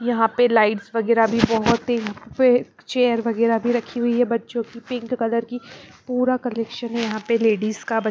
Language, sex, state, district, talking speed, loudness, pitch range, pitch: Hindi, female, Bihar, Patna, 200 wpm, -21 LUFS, 225-245 Hz, 235 Hz